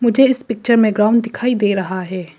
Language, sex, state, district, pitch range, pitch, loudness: Hindi, female, Arunachal Pradesh, Papum Pare, 195-240 Hz, 225 Hz, -16 LUFS